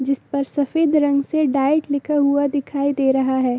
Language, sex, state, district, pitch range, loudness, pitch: Hindi, female, Bihar, Sitamarhi, 275-290 Hz, -19 LUFS, 280 Hz